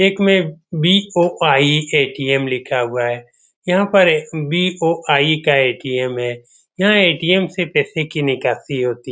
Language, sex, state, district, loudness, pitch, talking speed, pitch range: Hindi, male, Bihar, Saran, -16 LUFS, 155 Hz, 145 wpm, 135-180 Hz